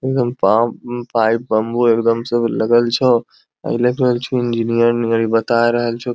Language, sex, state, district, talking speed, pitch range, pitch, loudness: Angika, male, Bihar, Bhagalpur, 135 wpm, 115-120 Hz, 120 Hz, -16 LUFS